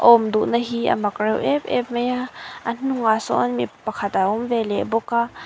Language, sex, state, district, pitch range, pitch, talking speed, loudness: Mizo, female, Mizoram, Aizawl, 210-240 Hz, 230 Hz, 220 wpm, -21 LUFS